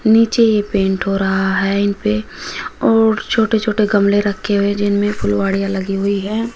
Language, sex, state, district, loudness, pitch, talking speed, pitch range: Hindi, female, Uttar Pradesh, Shamli, -16 LUFS, 205 Hz, 155 wpm, 195-215 Hz